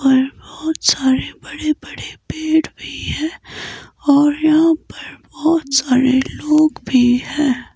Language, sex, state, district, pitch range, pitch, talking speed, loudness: Hindi, female, Himachal Pradesh, Shimla, 265-315 Hz, 295 Hz, 125 wpm, -16 LUFS